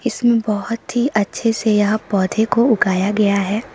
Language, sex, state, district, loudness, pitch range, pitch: Hindi, female, Sikkim, Gangtok, -17 LUFS, 205-235 Hz, 215 Hz